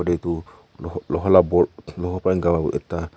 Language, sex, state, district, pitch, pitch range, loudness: Nagamese, male, Nagaland, Kohima, 85 Hz, 85-90 Hz, -21 LUFS